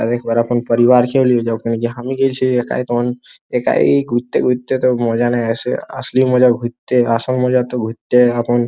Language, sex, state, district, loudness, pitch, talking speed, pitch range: Bengali, male, West Bengal, Purulia, -16 LUFS, 120 Hz, 110 wpm, 120-125 Hz